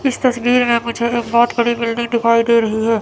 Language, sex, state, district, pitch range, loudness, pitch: Hindi, female, Chandigarh, Chandigarh, 230-240 Hz, -16 LUFS, 235 Hz